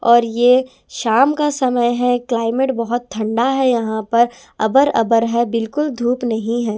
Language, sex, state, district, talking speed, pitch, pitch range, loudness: Hindi, female, Punjab, Kapurthala, 160 wpm, 240 Hz, 230-255 Hz, -17 LUFS